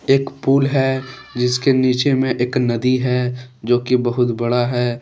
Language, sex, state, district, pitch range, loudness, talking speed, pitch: Hindi, male, Jharkhand, Deoghar, 125-135 Hz, -18 LUFS, 165 wpm, 125 Hz